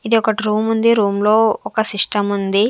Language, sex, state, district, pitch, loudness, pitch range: Telugu, female, Andhra Pradesh, Sri Satya Sai, 215 Hz, -16 LUFS, 205-225 Hz